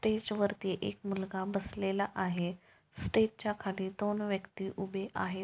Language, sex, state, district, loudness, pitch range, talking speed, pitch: Marathi, female, Maharashtra, Pune, -35 LUFS, 190-205 Hz, 130 wpm, 195 Hz